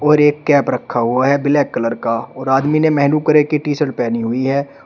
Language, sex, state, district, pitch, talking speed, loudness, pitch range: Hindi, male, Uttar Pradesh, Shamli, 140 Hz, 245 wpm, -16 LUFS, 125-150 Hz